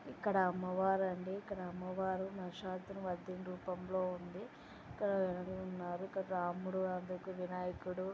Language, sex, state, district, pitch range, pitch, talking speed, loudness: Telugu, female, Andhra Pradesh, Anantapur, 180-190 Hz, 185 Hz, 95 wpm, -40 LUFS